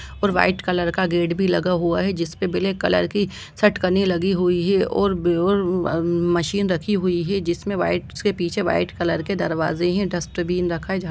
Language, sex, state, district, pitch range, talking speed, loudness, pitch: Hindi, female, Bihar, Lakhisarai, 175-195 Hz, 210 wpm, -21 LUFS, 180 Hz